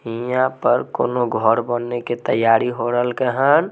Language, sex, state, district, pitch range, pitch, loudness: Maithili, male, Bihar, Samastipur, 115-125 Hz, 120 Hz, -19 LUFS